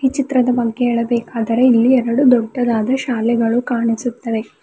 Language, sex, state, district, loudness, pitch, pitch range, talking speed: Kannada, female, Karnataka, Bidar, -16 LUFS, 240 Hz, 230-250 Hz, 105 wpm